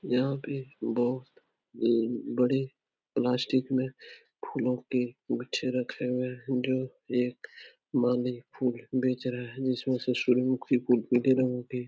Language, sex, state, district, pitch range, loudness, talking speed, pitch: Hindi, male, Uttar Pradesh, Etah, 125-130 Hz, -30 LUFS, 140 wpm, 125 Hz